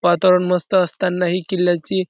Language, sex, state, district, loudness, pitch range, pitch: Marathi, male, Maharashtra, Dhule, -18 LUFS, 180-185 Hz, 180 Hz